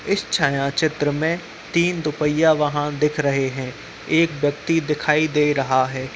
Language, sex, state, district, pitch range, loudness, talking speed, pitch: Hindi, male, Uttar Pradesh, Muzaffarnagar, 140-160 Hz, -20 LUFS, 155 wpm, 150 Hz